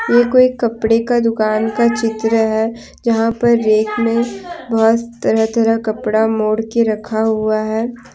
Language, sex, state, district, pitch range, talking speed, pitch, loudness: Hindi, female, Jharkhand, Deoghar, 220-235 Hz, 160 wpm, 225 Hz, -16 LUFS